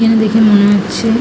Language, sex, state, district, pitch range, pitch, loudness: Bengali, female, West Bengal, North 24 Parganas, 205-225 Hz, 220 Hz, -11 LUFS